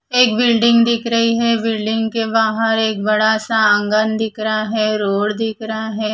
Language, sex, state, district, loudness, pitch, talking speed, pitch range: Hindi, female, Odisha, Khordha, -16 LUFS, 220 Hz, 185 wpm, 215-230 Hz